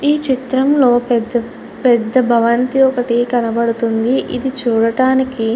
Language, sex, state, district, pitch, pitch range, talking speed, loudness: Telugu, female, Andhra Pradesh, Chittoor, 245 Hz, 235-260 Hz, 110 wpm, -15 LUFS